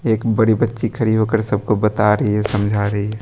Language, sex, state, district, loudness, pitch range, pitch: Hindi, male, Bihar, West Champaran, -17 LUFS, 105-110 Hz, 110 Hz